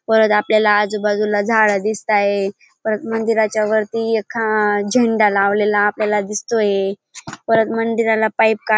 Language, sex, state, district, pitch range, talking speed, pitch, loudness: Marathi, female, Maharashtra, Dhule, 210-225 Hz, 115 wpm, 215 Hz, -17 LUFS